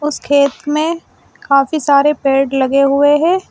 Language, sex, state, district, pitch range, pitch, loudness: Hindi, female, Uttar Pradesh, Shamli, 275-310 Hz, 285 Hz, -13 LUFS